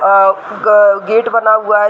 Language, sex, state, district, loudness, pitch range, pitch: Hindi, female, Bihar, Gaya, -11 LUFS, 200-215 Hz, 210 Hz